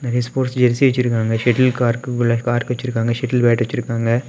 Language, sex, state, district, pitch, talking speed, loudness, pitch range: Tamil, male, Tamil Nadu, Kanyakumari, 120 Hz, 155 wpm, -18 LUFS, 115-125 Hz